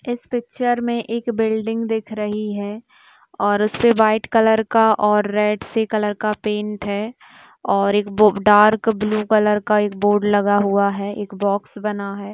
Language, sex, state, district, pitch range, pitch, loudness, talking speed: Hindi, female, Rajasthan, Churu, 205-225 Hz, 210 Hz, -19 LUFS, 180 wpm